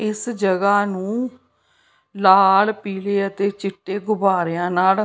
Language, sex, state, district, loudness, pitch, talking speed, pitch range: Punjabi, female, Punjab, Pathankot, -19 LUFS, 200 Hz, 120 wpm, 190-210 Hz